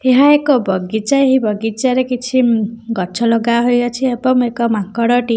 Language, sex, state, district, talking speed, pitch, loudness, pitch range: Odia, female, Odisha, Khordha, 145 wpm, 240 Hz, -15 LUFS, 225-255 Hz